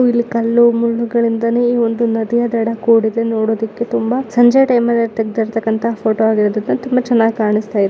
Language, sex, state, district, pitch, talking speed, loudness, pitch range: Kannada, female, Karnataka, Shimoga, 230 Hz, 145 wpm, -15 LUFS, 225-235 Hz